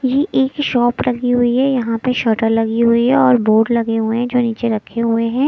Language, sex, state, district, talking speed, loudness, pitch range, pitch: Hindi, female, Chhattisgarh, Raipur, 240 wpm, -16 LUFS, 230-255 Hz, 240 Hz